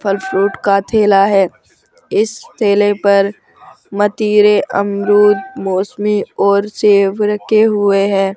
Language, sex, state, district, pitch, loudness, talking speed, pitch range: Hindi, female, Rajasthan, Jaipur, 200 Hz, -13 LUFS, 115 wpm, 195-210 Hz